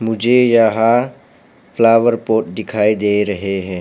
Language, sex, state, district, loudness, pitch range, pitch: Hindi, male, Arunachal Pradesh, Papum Pare, -14 LUFS, 105-115 Hz, 110 Hz